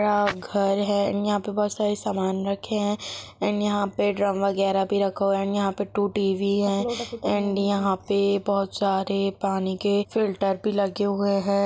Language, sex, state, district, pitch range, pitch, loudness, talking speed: Hindi, female, Bihar, Gopalganj, 195-205 Hz, 200 Hz, -24 LUFS, 185 wpm